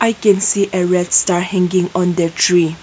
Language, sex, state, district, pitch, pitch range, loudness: English, female, Nagaland, Kohima, 180 Hz, 175-195 Hz, -14 LUFS